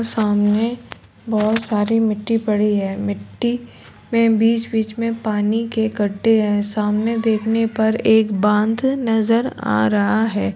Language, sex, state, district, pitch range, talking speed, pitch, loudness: Hindi, female, Uttar Pradesh, Jalaun, 210-230 Hz, 130 wpm, 220 Hz, -18 LUFS